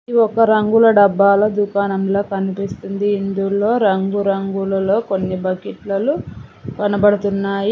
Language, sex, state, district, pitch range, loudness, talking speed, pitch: Telugu, female, Telangana, Mahabubabad, 195-205 Hz, -17 LUFS, 85 wpm, 200 Hz